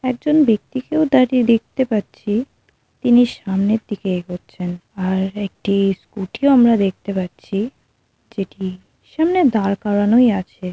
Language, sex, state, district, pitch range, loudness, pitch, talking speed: Bengali, female, West Bengal, North 24 Parganas, 195-245 Hz, -18 LUFS, 210 Hz, 115 wpm